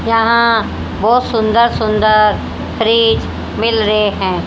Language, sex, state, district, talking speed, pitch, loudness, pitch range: Hindi, female, Haryana, Jhajjar, 110 wpm, 225 Hz, -13 LUFS, 215-230 Hz